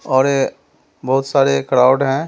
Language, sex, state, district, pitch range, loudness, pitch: Hindi, male, Delhi, New Delhi, 130-135 Hz, -15 LUFS, 135 Hz